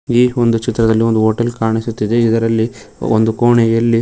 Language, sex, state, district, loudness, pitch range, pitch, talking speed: Kannada, male, Karnataka, Koppal, -14 LUFS, 110-120 Hz, 115 Hz, 135 wpm